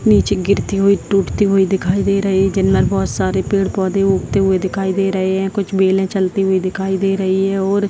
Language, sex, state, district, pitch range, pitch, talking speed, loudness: Hindi, female, Bihar, Jahanabad, 190-195 Hz, 195 Hz, 220 wpm, -16 LUFS